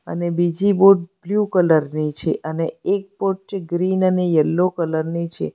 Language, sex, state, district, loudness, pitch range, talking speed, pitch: Gujarati, female, Gujarat, Valsad, -19 LUFS, 165-195 Hz, 185 wpm, 175 Hz